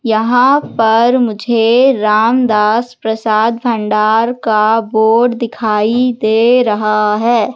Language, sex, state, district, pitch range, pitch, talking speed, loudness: Hindi, female, Madhya Pradesh, Katni, 215-240 Hz, 225 Hz, 95 wpm, -12 LUFS